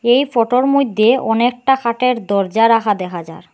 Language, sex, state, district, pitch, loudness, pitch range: Bengali, female, Assam, Hailakandi, 235 Hz, -15 LUFS, 215-250 Hz